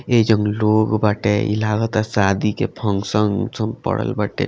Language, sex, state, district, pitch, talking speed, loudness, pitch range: Bhojpuri, male, Bihar, Gopalganj, 105 Hz, 160 wpm, -19 LUFS, 105-110 Hz